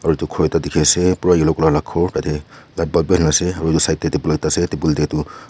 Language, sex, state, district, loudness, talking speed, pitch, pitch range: Nagamese, male, Nagaland, Kohima, -17 LUFS, 285 wpm, 80 Hz, 75-85 Hz